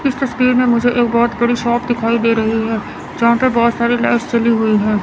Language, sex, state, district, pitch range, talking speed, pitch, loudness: Hindi, female, Chandigarh, Chandigarh, 225-240 Hz, 240 wpm, 235 Hz, -15 LUFS